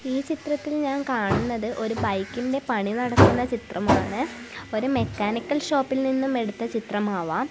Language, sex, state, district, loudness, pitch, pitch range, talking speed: Malayalam, female, Kerala, Kasaragod, -25 LUFS, 245 Hz, 220-270 Hz, 120 wpm